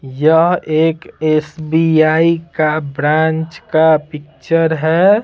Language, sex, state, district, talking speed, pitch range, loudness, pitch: Hindi, male, Bihar, Patna, 90 wpm, 155-165 Hz, -14 LUFS, 160 Hz